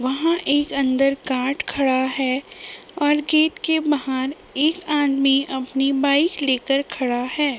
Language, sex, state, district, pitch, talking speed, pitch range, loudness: Hindi, female, Uttar Pradesh, Deoria, 275 Hz, 135 wpm, 265-300 Hz, -20 LUFS